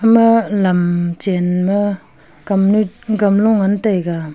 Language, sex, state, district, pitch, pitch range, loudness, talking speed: Wancho, female, Arunachal Pradesh, Longding, 195 Hz, 175-210 Hz, -15 LUFS, 95 wpm